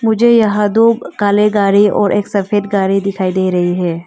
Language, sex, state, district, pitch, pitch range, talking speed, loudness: Hindi, female, Arunachal Pradesh, Longding, 205 Hz, 190-210 Hz, 190 wpm, -13 LUFS